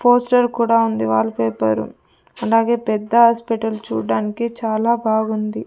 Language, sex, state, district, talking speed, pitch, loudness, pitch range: Telugu, female, Andhra Pradesh, Sri Satya Sai, 115 wpm, 225 Hz, -18 LUFS, 185-235 Hz